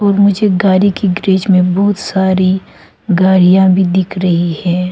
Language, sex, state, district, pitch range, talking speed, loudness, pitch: Hindi, female, Arunachal Pradesh, Longding, 180-195 Hz, 160 wpm, -12 LUFS, 190 Hz